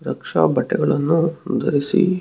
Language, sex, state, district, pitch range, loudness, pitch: Kannada, male, Karnataka, Shimoga, 150-185 Hz, -19 LUFS, 165 Hz